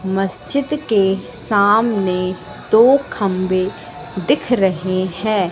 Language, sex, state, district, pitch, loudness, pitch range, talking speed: Hindi, female, Madhya Pradesh, Katni, 195 Hz, -17 LUFS, 185-220 Hz, 85 wpm